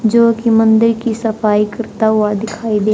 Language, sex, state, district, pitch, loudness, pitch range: Hindi, male, Haryana, Jhajjar, 220 Hz, -14 LUFS, 215-230 Hz